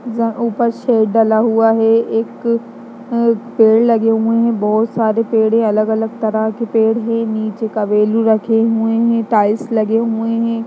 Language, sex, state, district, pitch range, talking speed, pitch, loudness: Hindi, female, Bihar, Darbhanga, 220-230 Hz, 155 wpm, 225 Hz, -15 LUFS